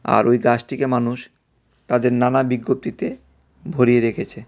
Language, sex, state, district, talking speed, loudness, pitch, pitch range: Bengali, male, Tripura, West Tripura, 120 wpm, -19 LUFS, 120 Hz, 115-125 Hz